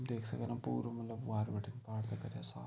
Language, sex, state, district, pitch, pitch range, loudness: Garhwali, male, Uttarakhand, Tehri Garhwal, 110 Hz, 95-115 Hz, -41 LUFS